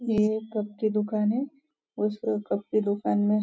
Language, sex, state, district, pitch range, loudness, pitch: Hindi, female, Maharashtra, Nagpur, 210-220 Hz, -27 LUFS, 215 Hz